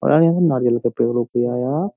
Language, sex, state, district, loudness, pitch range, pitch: Hindi, male, Uttar Pradesh, Jyotiba Phule Nagar, -18 LUFS, 120-160 Hz, 125 Hz